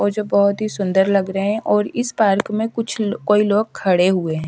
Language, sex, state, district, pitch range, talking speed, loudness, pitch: Hindi, female, Haryana, Rohtak, 195-215 Hz, 240 wpm, -18 LUFS, 205 Hz